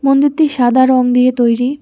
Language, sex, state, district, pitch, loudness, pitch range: Bengali, female, West Bengal, Alipurduar, 255 Hz, -12 LUFS, 250-275 Hz